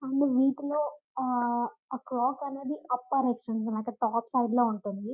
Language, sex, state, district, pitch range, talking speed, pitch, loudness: Telugu, female, Telangana, Karimnagar, 240-275 Hz, 130 wpm, 250 Hz, -30 LUFS